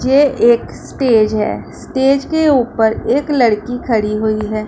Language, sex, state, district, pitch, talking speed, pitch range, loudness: Hindi, female, Punjab, Pathankot, 240 Hz, 155 wpm, 215-270 Hz, -14 LUFS